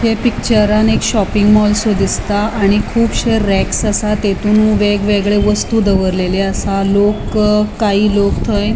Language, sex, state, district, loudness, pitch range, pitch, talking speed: Konkani, female, Goa, North and South Goa, -13 LUFS, 200-215 Hz, 210 Hz, 150 wpm